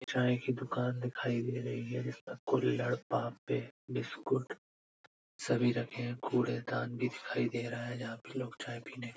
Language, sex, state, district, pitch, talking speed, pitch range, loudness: Hindi, male, Uttar Pradesh, Budaun, 120 Hz, 175 wpm, 120-125 Hz, -36 LUFS